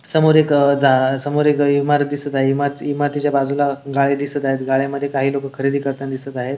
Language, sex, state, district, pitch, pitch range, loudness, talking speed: Marathi, male, Maharashtra, Sindhudurg, 140 Hz, 135-145 Hz, -18 LUFS, 200 wpm